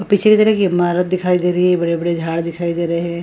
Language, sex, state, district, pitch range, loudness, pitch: Hindi, female, Bihar, Purnia, 170-185 Hz, -16 LUFS, 175 Hz